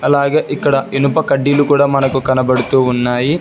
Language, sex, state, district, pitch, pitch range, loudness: Telugu, male, Telangana, Hyderabad, 140 Hz, 130-145 Hz, -14 LUFS